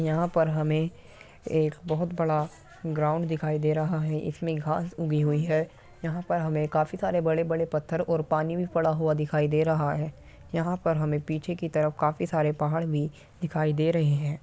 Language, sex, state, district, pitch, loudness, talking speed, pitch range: Hindi, male, Uttar Pradesh, Muzaffarnagar, 155 Hz, -27 LUFS, 190 wpm, 150-165 Hz